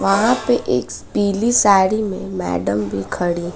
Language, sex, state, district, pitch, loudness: Hindi, female, Bihar, West Champaran, 190 Hz, -18 LUFS